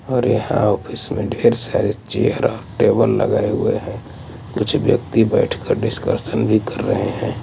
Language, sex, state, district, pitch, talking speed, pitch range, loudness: Hindi, male, Delhi, New Delhi, 115 Hz, 160 wpm, 105-125 Hz, -18 LUFS